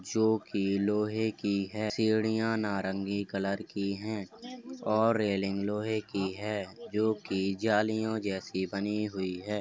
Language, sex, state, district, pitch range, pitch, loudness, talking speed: Hindi, male, Uttar Pradesh, Hamirpur, 100-110 Hz, 105 Hz, -31 LUFS, 135 wpm